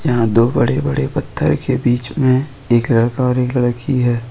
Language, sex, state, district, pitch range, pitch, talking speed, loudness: Hindi, male, Jharkhand, Ranchi, 120-130 Hz, 125 Hz, 195 wpm, -16 LUFS